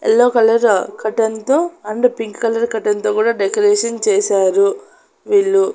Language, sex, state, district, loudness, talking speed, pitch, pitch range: Telugu, female, Andhra Pradesh, Annamaya, -15 LUFS, 135 wpm, 225 Hz, 210-250 Hz